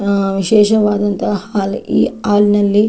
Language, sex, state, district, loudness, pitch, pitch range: Kannada, female, Karnataka, Dakshina Kannada, -14 LUFS, 205 Hz, 200-210 Hz